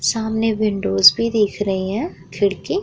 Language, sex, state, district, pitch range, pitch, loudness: Hindi, female, Uttar Pradesh, Muzaffarnagar, 190-225 Hz, 205 Hz, -18 LUFS